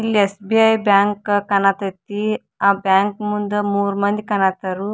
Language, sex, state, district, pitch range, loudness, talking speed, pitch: Kannada, female, Karnataka, Dharwad, 200-210 Hz, -18 LUFS, 135 wpm, 205 Hz